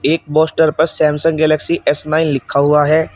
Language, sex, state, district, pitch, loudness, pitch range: Hindi, male, Uttar Pradesh, Shamli, 155 Hz, -14 LUFS, 150-160 Hz